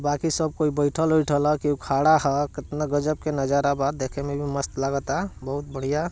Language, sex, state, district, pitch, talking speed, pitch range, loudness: Bhojpuri, male, Bihar, Gopalganj, 145 Hz, 205 wpm, 140-150 Hz, -24 LUFS